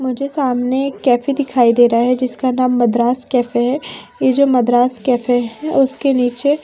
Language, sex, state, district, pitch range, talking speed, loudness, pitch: Hindi, female, Haryana, Rohtak, 245-275 Hz, 180 wpm, -15 LUFS, 255 Hz